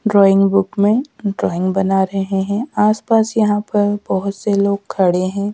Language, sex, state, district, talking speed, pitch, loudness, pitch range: Hindi, female, Madhya Pradesh, Dhar, 160 wpm, 200 Hz, -16 LUFS, 195-210 Hz